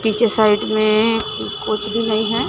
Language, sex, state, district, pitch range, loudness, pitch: Hindi, female, Maharashtra, Gondia, 215-225 Hz, -17 LUFS, 215 Hz